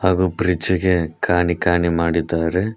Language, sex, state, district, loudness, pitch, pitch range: Kannada, male, Karnataka, Koppal, -19 LUFS, 90 Hz, 85-90 Hz